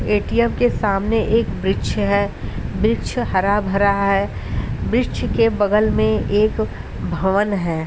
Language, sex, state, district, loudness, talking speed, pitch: Hindi, female, Uttar Pradesh, Ghazipur, -19 LUFS, 130 wpm, 200 Hz